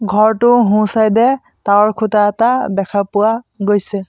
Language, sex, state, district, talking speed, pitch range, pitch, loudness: Assamese, male, Assam, Sonitpur, 145 wpm, 205-225 Hz, 215 Hz, -14 LUFS